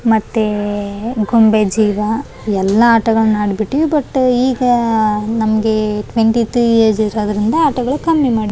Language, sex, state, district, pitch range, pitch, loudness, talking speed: Kannada, female, Karnataka, Raichur, 210-240 Hz, 220 Hz, -14 LUFS, 100 wpm